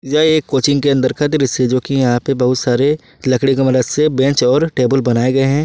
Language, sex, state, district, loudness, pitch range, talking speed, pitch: Hindi, male, Jharkhand, Ranchi, -14 LUFS, 130-145 Hz, 245 wpm, 135 Hz